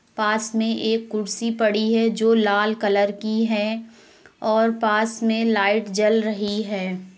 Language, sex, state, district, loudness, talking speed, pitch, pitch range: Hindi, female, Uttar Pradesh, Varanasi, -21 LUFS, 150 wpm, 220 Hz, 210-225 Hz